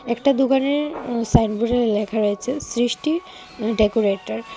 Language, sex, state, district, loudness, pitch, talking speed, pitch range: Bengali, female, Tripura, West Tripura, -21 LUFS, 235 Hz, 130 wpm, 220-270 Hz